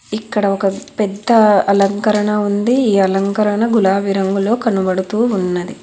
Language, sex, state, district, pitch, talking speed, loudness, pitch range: Telugu, female, Telangana, Hyderabad, 205 Hz, 115 wpm, -15 LUFS, 195-220 Hz